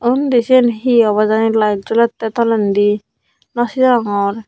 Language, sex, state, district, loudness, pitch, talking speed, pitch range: Chakma, female, Tripura, Unakoti, -14 LUFS, 225 Hz, 135 wpm, 210-240 Hz